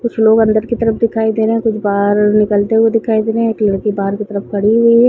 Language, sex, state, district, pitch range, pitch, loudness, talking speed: Hindi, female, Chhattisgarh, Raigarh, 205-225 Hz, 220 Hz, -14 LUFS, 295 wpm